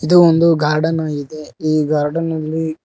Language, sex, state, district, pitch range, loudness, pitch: Kannada, male, Karnataka, Koppal, 150-165 Hz, -16 LUFS, 155 Hz